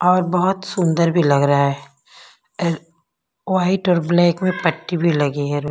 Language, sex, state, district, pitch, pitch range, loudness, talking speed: Hindi, female, Bihar, Kaimur, 170 Hz, 155-185 Hz, -18 LUFS, 170 wpm